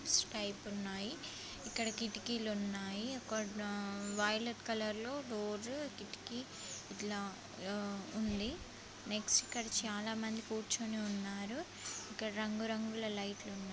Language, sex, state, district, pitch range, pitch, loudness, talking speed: Telugu, female, Andhra Pradesh, Guntur, 205-225 Hz, 215 Hz, -40 LUFS, 110 wpm